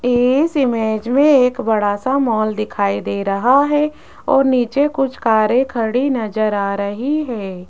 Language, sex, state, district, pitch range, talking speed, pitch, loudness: Hindi, female, Rajasthan, Jaipur, 215-270 Hz, 155 wpm, 245 Hz, -17 LUFS